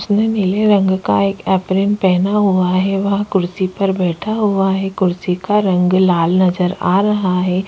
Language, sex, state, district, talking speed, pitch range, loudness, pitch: Hindi, female, Chhattisgarh, Korba, 190 wpm, 180-200 Hz, -15 LUFS, 190 Hz